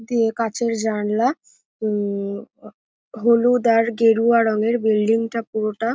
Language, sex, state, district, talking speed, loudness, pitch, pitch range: Bengali, female, West Bengal, North 24 Parganas, 130 wpm, -20 LUFS, 225 Hz, 215-235 Hz